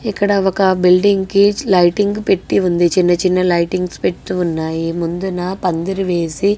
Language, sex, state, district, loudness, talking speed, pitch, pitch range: Telugu, female, Andhra Pradesh, Guntur, -15 LUFS, 135 wpm, 185 Hz, 175-195 Hz